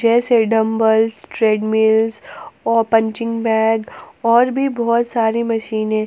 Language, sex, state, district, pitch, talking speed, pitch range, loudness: Hindi, female, Jharkhand, Palamu, 225 Hz, 110 wpm, 220-230 Hz, -17 LUFS